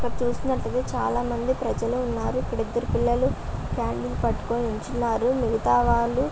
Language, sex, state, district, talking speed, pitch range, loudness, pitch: Telugu, female, Andhra Pradesh, Visakhapatnam, 125 wpm, 235-250 Hz, -25 LUFS, 240 Hz